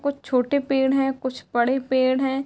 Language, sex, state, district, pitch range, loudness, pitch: Hindi, female, Bihar, Darbhanga, 260-275 Hz, -22 LUFS, 265 Hz